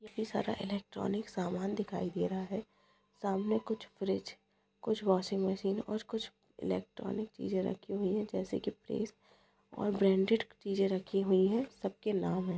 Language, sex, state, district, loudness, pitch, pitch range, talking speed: Hindi, female, Andhra Pradesh, Anantapur, -35 LUFS, 200 Hz, 190-215 Hz, 160 wpm